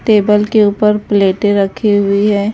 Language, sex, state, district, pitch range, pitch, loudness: Hindi, female, Bihar, West Champaran, 200-210 Hz, 205 Hz, -12 LUFS